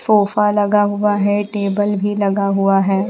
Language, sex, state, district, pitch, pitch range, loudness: Hindi, female, Bihar, Patna, 205 Hz, 200-210 Hz, -16 LUFS